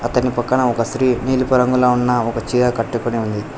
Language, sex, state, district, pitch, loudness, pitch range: Telugu, male, Telangana, Hyderabad, 125 Hz, -17 LUFS, 120-125 Hz